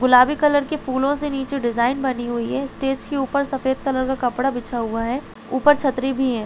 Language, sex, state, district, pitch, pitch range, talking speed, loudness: Hindi, female, Chhattisgarh, Balrampur, 265 Hz, 250-275 Hz, 225 wpm, -21 LUFS